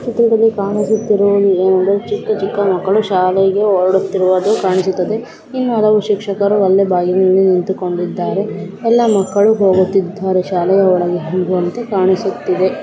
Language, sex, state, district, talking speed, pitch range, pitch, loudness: Kannada, female, Karnataka, Dakshina Kannada, 110 wpm, 185-210 Hz, 195 Hz, -14 LUFS